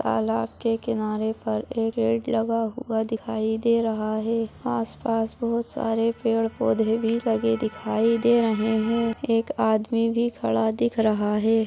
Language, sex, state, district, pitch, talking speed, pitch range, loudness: Hindi, female, Chhattisgarh, Balrampur, 225 Hz, 155 wpm, 220-230 Hz, -24 LUFS